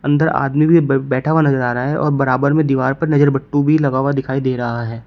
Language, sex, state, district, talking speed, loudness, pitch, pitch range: Hindi, male, Uttar Pradesh, Shamli, 285 wpm, -16 LUFS, 140 Hz, 130-150 Hz